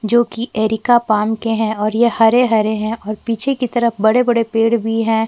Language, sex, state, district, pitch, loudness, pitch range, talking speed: Hindi, female, Chhattisgarh, Korba, 225 Hz, -16 LUFS, 220-235 Hz, 260 wpm